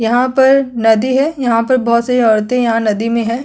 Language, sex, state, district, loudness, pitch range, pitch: Hindi, female, Uttarakhand, Tehri Garhwal, -13 LUFS, 230-255 Hz, 235 Hz